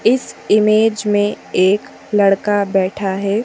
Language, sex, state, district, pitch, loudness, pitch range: Hindi, female, Madhya Pradesh, Bhopal, 205 Hz, -16 LUFS, 195-210 Hz